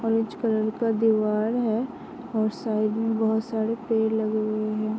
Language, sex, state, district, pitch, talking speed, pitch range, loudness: Hindi, female, Uttar Pradesh, Varanasi, 220 Hz, 170 wpm, 215-225 Hz, -25 LUFS